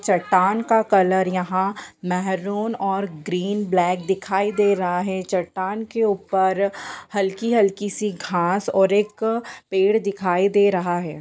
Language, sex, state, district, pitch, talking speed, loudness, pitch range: Hindi, female, Bihar, Bhagalpur, 195 Hz, 135 wpm, -21 LUFS, 185-205 Hz